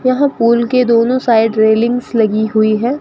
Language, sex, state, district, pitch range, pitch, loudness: Hindi, female, Rajasthan, Bikaner, 220-250 Hz, 235 Hz, -13 LUFS